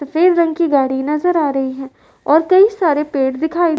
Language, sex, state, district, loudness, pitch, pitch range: Hindi, female, Uttar Pradesh, Varanasi, -15 LUFS, 310 Hz, 275-340 Hz